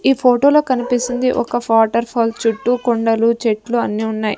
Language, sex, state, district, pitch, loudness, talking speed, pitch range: Telugu, female, Andhra Pradesh, Sri Satya Sai, 235 Hz, -16 LUFS, 165 wpm, 225-250 Hz